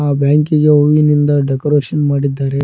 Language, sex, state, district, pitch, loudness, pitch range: Kannada, male, Karnataka, Koppal, 145 Hz, -13 LUFS, 140-150 Hz